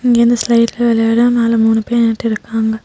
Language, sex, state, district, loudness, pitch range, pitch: Tamil, female, Tamil Nadu, Nilgiris, -13 LUFS, 225-235 Hz, 230 Hz